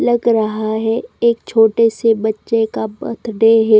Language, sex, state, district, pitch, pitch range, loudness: Hindi, female, Chandigarh, Chandigarh, 225 Hz, 220-230 Hz, -15 LUFS